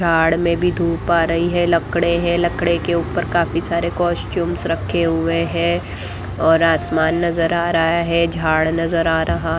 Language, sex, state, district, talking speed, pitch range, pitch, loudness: Hindi, female, Bihar, Lakhisarai, 180 wpm, 160-170 Hz, 165 Hz, -18 LUFS